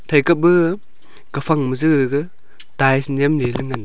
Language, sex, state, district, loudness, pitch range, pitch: Wancho, male, Arunachal Pradesh, Longding, -17 LUFS, 135-160 Hz, 145 Hz